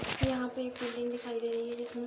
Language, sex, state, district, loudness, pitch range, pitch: Hindi, female, Bihar, Araria, -35 LUFS, 235-245 Hz, 240 Hz